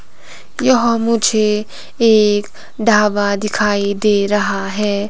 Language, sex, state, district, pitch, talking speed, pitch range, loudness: Hindi, female, Himachal Pradesh, Shimla, 210 Hz, 95 wpm, 205-220 Hz, -15 LUFS